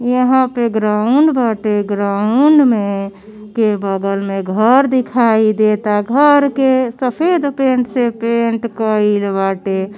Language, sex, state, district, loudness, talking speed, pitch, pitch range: Bhojpuri, female, Uttar Pradesh, Gorakhpur, -14 LUFS, 120 wpm, 225 Hz, 205-255 Hz